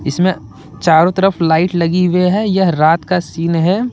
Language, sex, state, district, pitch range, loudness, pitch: Hindi, male, Jharkhand, Deoghar, 165-185 Hz, -14 LUFS, 175 Hz